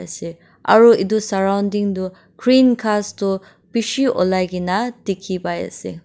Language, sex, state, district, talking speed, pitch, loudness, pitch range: Nagamese, female, Nagaland, Dimapur, 120 wpm, 195 Hz, -18 LUFS, 185-230 Hz